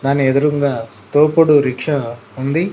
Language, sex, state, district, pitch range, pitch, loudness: Telugu, male, Telangana, Mahabubabad, 130-150 Hz, 140 Hz, -15 LUFS